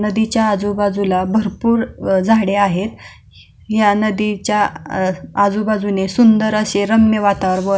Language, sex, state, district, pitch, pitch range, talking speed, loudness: Marathi, female, Maharashtra, Pune, 205 Hz, 195-215 Hz, 100 wpm, -16 LUFS